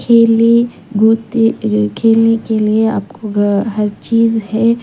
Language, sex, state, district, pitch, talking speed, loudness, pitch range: Hindi, female, Punjab, Pathankot, 225 Hz, 135 wpm, -13 LUFS, 210-230 Hz